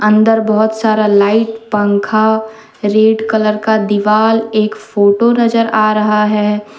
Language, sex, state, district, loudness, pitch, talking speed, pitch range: Hindi, female, Jharkhand, Deoghar, -12 LUFS, 215 Hz, 135 wpm, 210-220 Hz